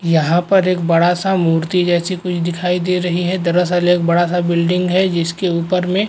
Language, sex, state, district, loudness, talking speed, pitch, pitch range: Hindi, male, Uttar Pradesh, Muzaffarnagar, -16 LUFS, 215 wpm, 175 Hz, 170-180 Hz